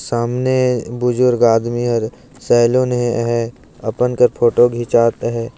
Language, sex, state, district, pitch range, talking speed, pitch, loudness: Hindi, male, Chhattisgarh, Jashpur, 120-125 Hz, 120 wpm, 120 Hz, -16 LUFS